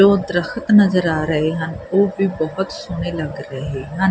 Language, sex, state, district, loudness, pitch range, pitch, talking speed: Punjabi, female, Punjab, Kapurthala, -19 LUFS, 155-195 Hz, 175 Hz, 205 wpm